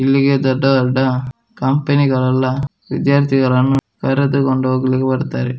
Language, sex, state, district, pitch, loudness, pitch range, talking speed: Kannada, male, Karnataka, Dakshina Kannada, 130 Hz, -16 LUFS, 130-140 Hz, 85 wpm